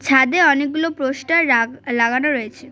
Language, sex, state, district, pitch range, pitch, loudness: Bengali, female, West Bengal, Cooch Behar, 255-300 Hz, 275 Hz, -17 LUFS